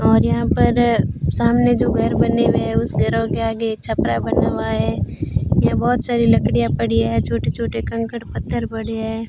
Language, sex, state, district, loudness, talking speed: Hindi, female, Rajasthan, Bikaner, -19 LUFS, 180 wpm